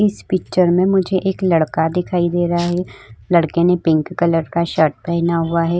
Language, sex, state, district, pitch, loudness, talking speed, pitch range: Hindi, female, Uttar Pradesh, Budaun, 170 Hz, -17 LUFS, 195 wpm, 165-180 Hz